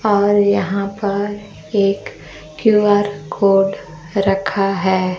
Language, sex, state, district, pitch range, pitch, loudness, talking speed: Hindi, female, Bihar, Kaimur, 195-205 Hz, 200 Hz, -17 LUFS, 90 wpm